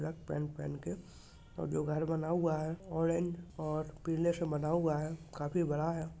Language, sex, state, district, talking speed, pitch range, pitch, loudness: Hindi, male, Maharashtra, Pune, 195 wpm, 155-165 Hz, 160 Hz, -36 LUFS